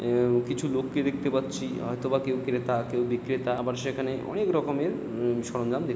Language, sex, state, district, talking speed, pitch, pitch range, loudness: Bengali, male, West Bengal, Jalpaiguri, 170 wpm, 125 Hz, 120-135 Hz, -28 LUFS